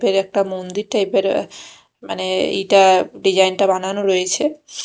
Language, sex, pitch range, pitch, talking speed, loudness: Bengali, female, 185-200 Hz, 195 Hz, 135 wpm, -17 LUFS